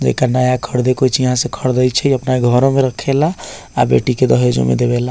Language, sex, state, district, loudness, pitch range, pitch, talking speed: Bajjika, male, Bihar, Vaishali, -15 LUFS, 120-135 Hz, 125 Hz, 235 wpm